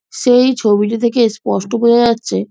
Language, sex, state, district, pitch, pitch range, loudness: Bengali, female, West Bengal, Jhargram, 235 Hz, 215-240 Hz, -13 LUFS